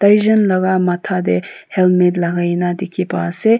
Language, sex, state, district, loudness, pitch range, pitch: Nagamese, female, Nagaland, Kohima, -16 LUFS, 175-190 Hz, 180 Hz